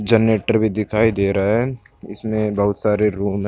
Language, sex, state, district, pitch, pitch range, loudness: Hindi, male, Uttar Pradesh, Budaun, 105 Hz, 100-110 Hz, -19 LUFS